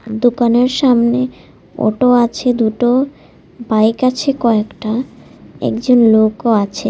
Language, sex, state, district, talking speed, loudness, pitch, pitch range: Bengali, female, Tripura, West Tripura, 95 wpm, -14 LUFS, 240 Hz, 220-250 Hz